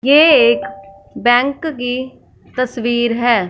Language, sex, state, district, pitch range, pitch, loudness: Hindi, female, Punjab, Fazilka, 230-255 Hz, 240 Hz, -14 LUFS